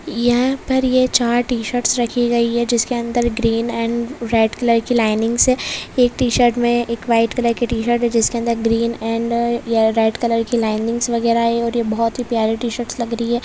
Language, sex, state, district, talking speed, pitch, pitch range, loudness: Hindi, female, Maharashtra, Pune, 200 wpm, 235 Hz, 230-240 Hz, -18 LUFS